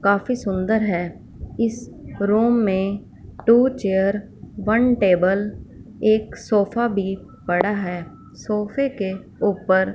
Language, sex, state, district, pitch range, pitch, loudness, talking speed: Hindi, female, Punjab, Fazilka, 190-225 Hz, 205 Hz, -21 LUFS, 110 wpm